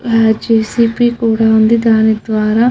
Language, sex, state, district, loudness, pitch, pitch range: Telugu, female, Andhra Pradesh, Krishna, -12 LUFS, 225 Hz, 220-230 Hz